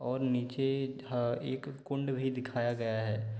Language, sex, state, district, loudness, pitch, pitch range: Hindi, male, Jharkhand, Sahebganj, -34 LUFS, 130 Hz, 120-135 Hz